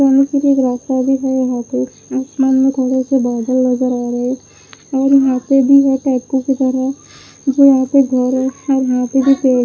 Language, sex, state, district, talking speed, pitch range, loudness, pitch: Hindi, female, Punjab, Pathankot, 200 wpm, 255-270 Hz, -14 LUFS, 265 Hz